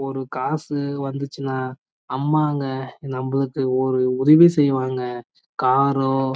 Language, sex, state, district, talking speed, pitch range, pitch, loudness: Tamil, male, Karnataka, Chamarajanagar, 85 wpm, 130-140 Hz, 135 Hz, -21 LUFS